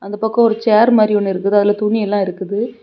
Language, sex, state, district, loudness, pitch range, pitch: Tamil, female, Tamil Nadu, Kanyakumari, -15 LUFS, 200-220 Hz, 210 Hz